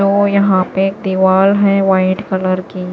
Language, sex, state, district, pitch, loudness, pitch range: Hindi, female, Maharashtra, Washim, 190 Hz, -13 LUFS, 185-200 Hz